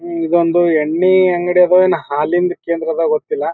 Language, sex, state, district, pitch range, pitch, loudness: Kannada, male, Karnataka, Bijapur, 165-180 Hz, 175 Hz, -14 LUFS